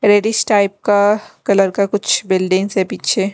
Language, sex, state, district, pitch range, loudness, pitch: Hindi, female, Delhi, New Delhi, 195-205 Hz, -15 LUFS, 200 Hz